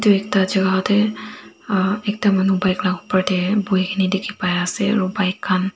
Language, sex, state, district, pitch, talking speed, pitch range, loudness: Nagamese, female, Nagaland, Dimapur, 190 Hz, 165 wpm, 185-205 Hz, -19 LUFS